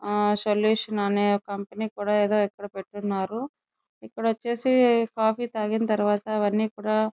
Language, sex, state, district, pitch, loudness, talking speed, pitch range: Telugu, female, Andhra Pradesh, Chittoor, 210 Hz, -25 LUFS, 135 wpm, 205-220 Hz